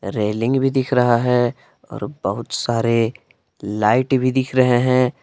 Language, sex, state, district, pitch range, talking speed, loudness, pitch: Hindi, male, Jharkhand, Palamu, 115-130 Hz, 150 wpm, -18 LUFS, 125 Hz